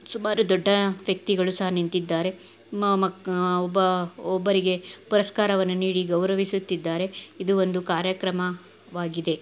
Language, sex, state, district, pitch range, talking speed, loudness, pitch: Kannada, female, Karnataka, Gulbarga, 180-195 Hz, 95 wpm, -24 LUFS, 185 Hz